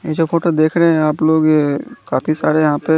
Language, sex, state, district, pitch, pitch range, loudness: Hindi, male, Chandigarh, Chandigarh, 155 Hz, 155-165 Hz, -15 LUFS